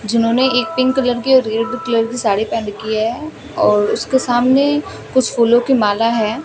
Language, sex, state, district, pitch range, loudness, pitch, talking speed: Hindi, female, Rajasthan, Bikaner, 225-260 Hz, -16 LUFS, 240 Hz, 195 wpm